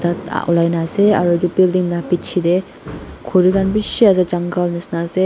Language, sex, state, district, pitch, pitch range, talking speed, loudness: Nagamese, female, Nagaland, Dimapur, 180 Hz, 175-185 Hz, 180 wpm, -16 LUFS